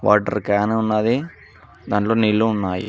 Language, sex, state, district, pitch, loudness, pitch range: Telugu, male, Telangana, Mahabubabad, 105 Hz, -19 LUFS, 105-110 Hz